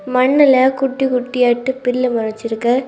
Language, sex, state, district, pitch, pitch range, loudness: Tamil, female, Tamil Nadu, Kanyakumari, 255 Hz, 245-265 Hz, -15 LUFS